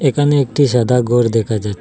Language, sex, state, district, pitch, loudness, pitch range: Bengali, male, Assam, Hailakandi, 120 Hz, -15 LUFS, 115-140 Hz